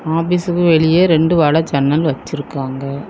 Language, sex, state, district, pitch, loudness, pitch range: Tamil, female, Tamil Nadu, Kanyakumari, 160 Hz, -15 LUFS, 140-165 Hz